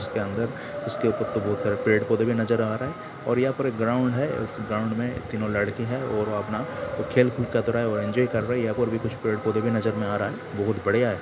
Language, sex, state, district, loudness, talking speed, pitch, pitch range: Hindi, male, Bihar, Sitamarhi, -26 LUFS, 280 wpm, 115 Hz, 105-125 Hz